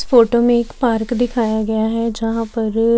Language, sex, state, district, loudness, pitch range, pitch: Hindi, female, Chhattisgarh, Raipur, -17 LUFS, 225-235 Hz, 230 Hz